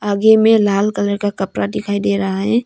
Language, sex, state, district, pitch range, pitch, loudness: Hindi, female, Arunachal Pradesh, Longding, 195-210 Hz, 205 Hz, -15 LUFS